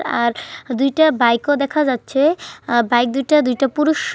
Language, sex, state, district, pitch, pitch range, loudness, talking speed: Bengali, female, West Bengal, Kolkata, 275 Hz, 240-300 Hz, -17 LUFS, 175 wpm